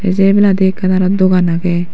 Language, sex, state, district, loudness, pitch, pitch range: Chakma, female, Tripura, Dhalai, -12 LUFS, 185 Hz, 180-195 Hz